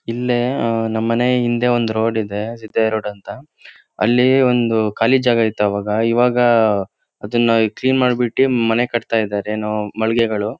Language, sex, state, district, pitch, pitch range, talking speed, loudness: Kannada, male, Karnataka, Shimoga, 115 Hz, 110-120 Hz, 155 wpm, -17 LUFS